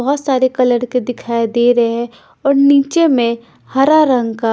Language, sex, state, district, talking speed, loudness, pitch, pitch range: Hindi, female, Bihar, Patna, 185 wpm, -14 LUFS, 250 Hz, 235-275 Hz